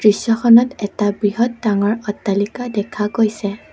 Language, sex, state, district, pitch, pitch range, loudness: Assamese, female, Assam, Kamrup Metropolitan, 210 Hz, 205-230 Hz, -17 LUFS